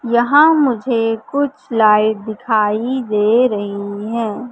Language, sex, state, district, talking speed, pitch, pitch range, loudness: Hindi, female, Madhya Pradesh, Katni, 105 wpm, 225 Hz, 210-250 Hz, -16 LUFS